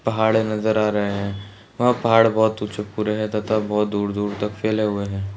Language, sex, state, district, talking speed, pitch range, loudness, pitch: Hindi, male, Uttarakhand, Uttarkashi, 180 wpm, 100-110 Hz, -21 LUFS, 105 Hz